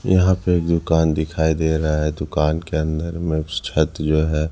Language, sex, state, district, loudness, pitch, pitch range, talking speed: Hindi, male, Punjab, Kapurthala, -20 LUFS, 80 Hz, 75-85 Hz, 185 wpm